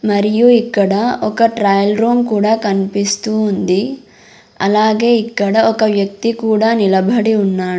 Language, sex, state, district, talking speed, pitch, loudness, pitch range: Telugu, female, Andhra Pradesh, Sri Satya Sai, 115 wpm, 215 Hz, -14 LUFS, 200-230 Hz